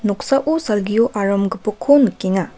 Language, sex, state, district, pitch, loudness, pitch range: Garo, female, Meghalaya, West Garo Hills, 210 Hz, -17 LUFS, 200-265 Hz